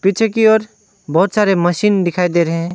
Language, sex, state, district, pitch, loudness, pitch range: Hindi, male, West Bengal, Alipurduar, 195 Hz, -15 LUFS, 175-210 Hz